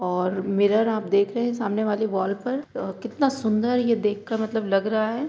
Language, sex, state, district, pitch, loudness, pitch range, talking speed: Hindi, female, Uttar Pradesh, Jalaun, 215 Hz, -24 LUFS, 200-235 Hz, 215 wpm